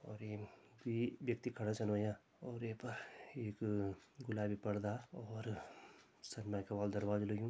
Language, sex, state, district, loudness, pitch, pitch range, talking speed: Garhwali, male, Uttarakhand, Tehri Garhwal, -43 LUFS, 105 Hz, 105-120 Hz, 145 wpm